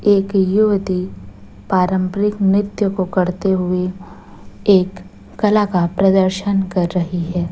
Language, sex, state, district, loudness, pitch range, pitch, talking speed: Hindi, female, Chhattisgarh, Raipur, -17 LUFS, 180-195 Hz, 185 Hz, 110 wpm